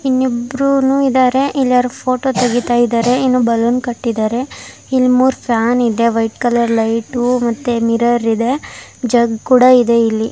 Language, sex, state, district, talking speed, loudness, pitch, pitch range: Kannada, female, Karnataka, Dakshina Kannada, 145 wpm, -14 LUFS, 245 Hz, 230-255 Hz